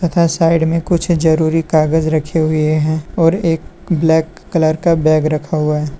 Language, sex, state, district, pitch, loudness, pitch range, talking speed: Hindi, male, Uttar Pradesh, Lalitpur, 160 Hz, -15 LUFS, 155-165 Hz, 180 wpm